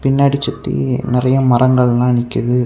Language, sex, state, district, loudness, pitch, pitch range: Tamil, male, Tamil Nadu, Kanyakumari, -14 LUFS, 125 Hz, 120-130 Hz